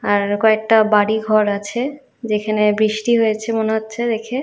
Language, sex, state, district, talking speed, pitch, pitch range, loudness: Bengali, female, Odisha, Khordha, 150 wpm, 220 Hz, 210-230 Hz, -17 LUFS